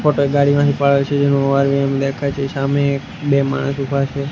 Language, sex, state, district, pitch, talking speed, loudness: Gujarati, male, Gujarat, Gandhinagar, 140 Hz, 110 wpm, -17 LUFS